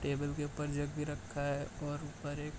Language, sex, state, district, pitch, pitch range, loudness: Hindi, male, Bihar, Bhagalpur, 145 Hz, 145-150 Hz, -39 LUFS